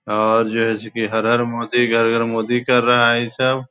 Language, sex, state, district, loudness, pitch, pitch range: Hindi, male, Bihar, Begusarai, -17 LUFS, 115 Hz, 115-120 Hz